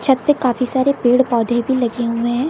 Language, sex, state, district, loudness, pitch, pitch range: Hindi, female, Uttar Pradesh, Lucknow, -17 LUFS, 250 Hz, 240-265 Hz